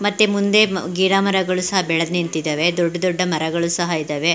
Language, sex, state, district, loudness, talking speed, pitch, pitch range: Kannada, female, Karnataka, Mysore, -18 LUFS, 150 wpm, 180 Hz, 170-190 Hz